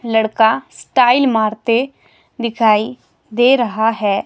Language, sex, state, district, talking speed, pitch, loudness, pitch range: Hindi, female, Himachal Pradesh, Shimla, 100 wpm, 230 Hz, -15 LUFS, 220-245 Hz